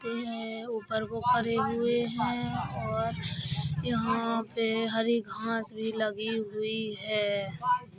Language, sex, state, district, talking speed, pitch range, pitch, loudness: Hindi, female, Uttar Pradesh, Hamirpur, 105 wpm, 205-230 Hz, 225 Hz, -30 LUFS